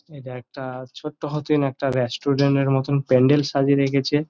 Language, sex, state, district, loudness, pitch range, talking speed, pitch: Bengali, male, West Bengal, Jalpaiguri, -20 LUFS, 130-145 Hz, 170 wpm, 140 Hz